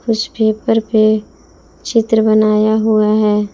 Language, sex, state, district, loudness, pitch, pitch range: Hindi, female, Jharkhand, Palamu, -14 LUFS, 215 Hz, 215-220 Hz